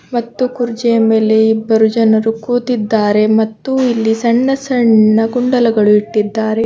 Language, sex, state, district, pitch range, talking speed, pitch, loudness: Kannada, female, Karnataka, Bidar, 220-245 Hz, 110 wpm, 225 Hz, -13 LUFS